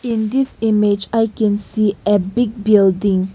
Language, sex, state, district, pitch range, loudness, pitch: English, female, Nagaland, Kohima, 200-225 Hz, -16 LUFS, 215 Hz